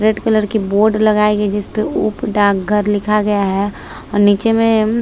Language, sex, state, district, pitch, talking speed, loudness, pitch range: Hindi, female, Maharashtra, Chandrapur, 210 Hz, 190 wpm, -15 LUFS, 205-215 Hz